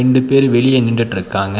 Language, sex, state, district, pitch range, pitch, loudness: Tamil, male, Tamil Nadu, Nilgiris, 105-130 Hz, 120 Hz, -14 LUFS